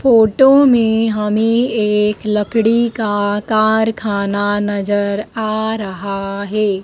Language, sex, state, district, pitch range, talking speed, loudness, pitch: Hindi, female, Madhya Pradesh, Dhar, 205-225 Hz, 95 wpm, -15 LUFS, 215 Hz